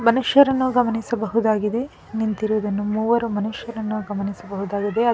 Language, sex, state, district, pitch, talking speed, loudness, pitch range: Kannada, female, Karnataka, Bangalore, 220 Hz, 80 wpm, -22 LUFS, 210-235 Hz